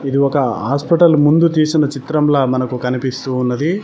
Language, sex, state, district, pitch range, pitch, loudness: Telugu, male, Telangana, Mahabubabad, 130-155 Hz, 140 Hz, -15 LUFS